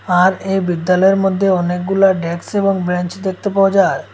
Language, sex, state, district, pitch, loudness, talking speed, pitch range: Bengali, male, Assam, Hailakandi, 190 Hz, -15 LUFS, 160 wpm, 180-195 Hz